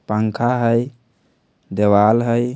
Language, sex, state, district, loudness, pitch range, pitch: Bajjika, male, Bihar, Vaishali, -17 LUFS, 105-120 Hz, 115 Hz